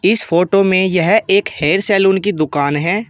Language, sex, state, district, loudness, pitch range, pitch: Hindi, male, Uttar Pradesh, Shamli, -14 LUFS, 175-205 Hz, 190 Hz